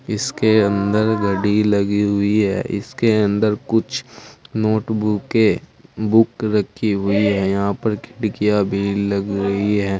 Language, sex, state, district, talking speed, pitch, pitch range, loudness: Hindi, male, Uttar Pradesh, Saharanpur, 130 wpm, 105 Hz, 100-110 Hz, -19 LUFS